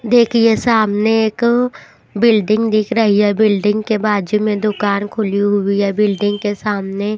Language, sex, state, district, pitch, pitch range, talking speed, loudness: Hindi, female, Maharashtra, Washim, 210 Hz, 205-220 Hz, 150 wpm, -15 LUFS